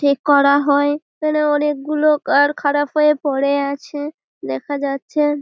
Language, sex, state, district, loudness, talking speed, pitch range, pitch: Bengali, female, West Bengal, Malda, -17 LUFS, 135 wpm, 280-300 Hz, 290 Hz